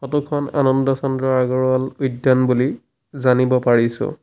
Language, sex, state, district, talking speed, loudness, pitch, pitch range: Assamese, male, Assam, Sonitpur, 130 wpm, -18 LUFS, 130 Hz, 130-135 Hz